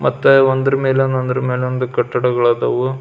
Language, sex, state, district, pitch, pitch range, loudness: Kannada, male, Karnataka, Belgaum, 130 Hz, 125-135 Hz, -16 LUFS